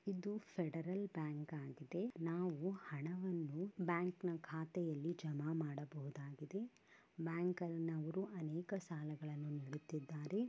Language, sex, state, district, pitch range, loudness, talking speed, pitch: Kannada, female, Karnataka, Bellary, 150-180 Hz, -45 LUFS, 90 wpm, 165 Hz